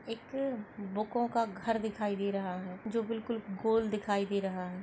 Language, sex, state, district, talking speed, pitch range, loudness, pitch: Hindi, female, Goa, North and South Goa, 185 wpm, 200-230 Hz, -34 LUFS, 215 Hz